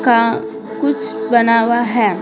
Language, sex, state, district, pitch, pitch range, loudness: Hindi, female, Bihar, Patna, 230 Hz, 145-235 Hz, -15 LUFS